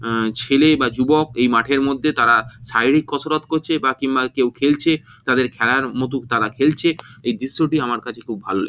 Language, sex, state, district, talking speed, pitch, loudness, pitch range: Bengali, male, West Bengal, Jhargram, 185 wpm, 130 Hz, -18 LUFS, 120-150 Hz